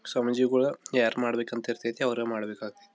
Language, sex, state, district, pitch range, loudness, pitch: Kannada, male, Karnataka, Belgaum, 115-130 Hz, -28 LUFS, 120 Hz